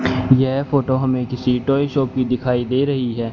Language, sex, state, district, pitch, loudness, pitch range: Hindi, male, Haryana, Rohtak, 130 Hz, -19 LUFS, 125-135 Hz